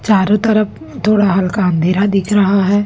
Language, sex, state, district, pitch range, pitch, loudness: Hindi, female, Chhattisgarh, Raipur, 190-210 Hz, 200 Hz, -14 LUFS